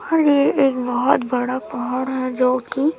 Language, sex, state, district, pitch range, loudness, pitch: Hindi, female, Chhattisgarh, Raipur, 250-280 Hz, -19 LUFS, 255 Hz